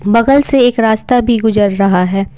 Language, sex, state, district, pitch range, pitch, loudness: Hindi, female, Bihar, Patna, 200-245 Hz, 220 Hz, -11 LUFS